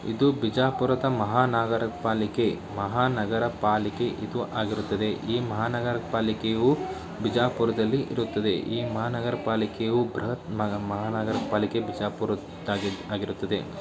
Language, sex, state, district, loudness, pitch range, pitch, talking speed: Kannada, male, Karnataka, Bijapur, -27 LUFS, 105-120 Hz, 115 Hz, 85 wpm